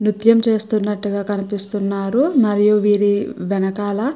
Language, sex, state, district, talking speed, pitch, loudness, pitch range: Telugu, female, Andhra Pradesh, Chittoor, 100 wpm, 205 Hz, -18 LUFS, 200-215 Hz